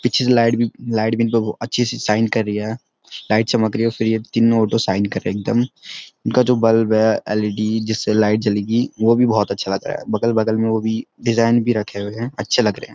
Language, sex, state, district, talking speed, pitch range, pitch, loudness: Hindi, male, Uttarakhand, Uttarkashi, 240 wpm, 105-115 Hz, 110 Hz, -18 LUFS